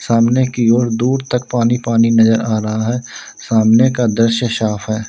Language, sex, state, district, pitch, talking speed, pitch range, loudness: Hindi, male, Uttar Pradesh, Lalitpur, 115 Hz, 190 wpm, 110-120 Hz, -14 LUFS